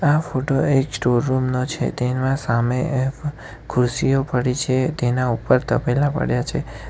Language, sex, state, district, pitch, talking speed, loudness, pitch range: Gujarati, male, Gujarat, Valsad, 130 Hz, 155 wpm, -20 LUFS, 125-140 Hz